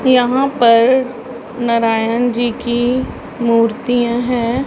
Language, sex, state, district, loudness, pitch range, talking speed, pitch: Hindi, female, Punjab, Pathankot, -15 LUFS, 235-250 Hz, 90 wpm, 240 Hz